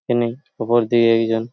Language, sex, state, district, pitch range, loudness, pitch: Bengali, male, West Bengal, Paschim Medinipur, 115-120 Hz, -18 LUFS, 115 Hz